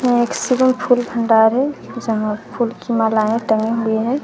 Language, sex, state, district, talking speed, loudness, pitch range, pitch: Hindi, female, Bihar, West Champaran, 155 wpm, -17 LUFS, 220-245 Hz, 230 Hz